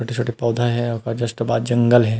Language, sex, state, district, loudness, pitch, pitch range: Chhattisgarhi, male, Chhattisgarh, Rajnandgaon, -20 LUFS, 120 Hz, 115-120 Hz